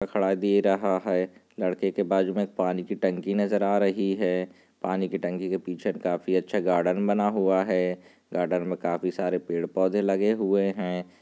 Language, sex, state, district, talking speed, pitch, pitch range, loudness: Hindi, male, Chhattisgarh, Raigarh, 180 wpm, 95 Hz, 90-100 Hz, -26 LUFS